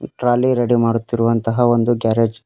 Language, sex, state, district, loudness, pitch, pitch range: Kannada, male, Karnataka, Koppal, -17 LUFS, 115 Hz, 115-120 Hz